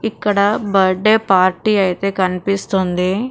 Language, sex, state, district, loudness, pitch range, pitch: Telugu, female, Telangana, Karimnagar, -16 LUFS, 185-210 Hz, 195 Hz